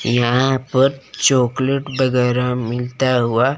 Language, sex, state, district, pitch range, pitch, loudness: Hindi, male, Chandigarh, Chandigarh, 125-135 Hz, 130 Hz, -17 LUFS